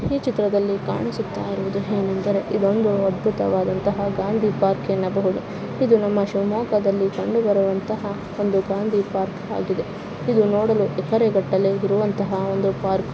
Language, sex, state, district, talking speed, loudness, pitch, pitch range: Kannada, female, Karnataka, Shimoga, 120 wpm, -21 LUFS, 200 Hz, 195-210 Hz